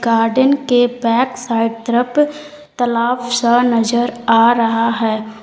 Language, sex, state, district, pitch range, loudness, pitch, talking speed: Hindi, female, Uttar Pradesh, Lalitpur, 230-250 Hz, -15 LUFS, 240 Hz, 120 wpm